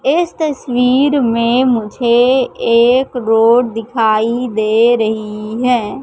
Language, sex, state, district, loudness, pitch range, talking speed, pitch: Hindi, female, Madhya Pradesh, Katni, -13 LUFS, 225-250 Hz, 100 wpm, 240 Hz